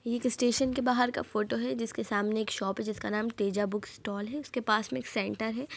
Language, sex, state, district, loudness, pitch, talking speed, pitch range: Hindi, female, Bihar, Gopalganj, -31 LUFS, 220 Hz, 270 wpm, 210-250 Hz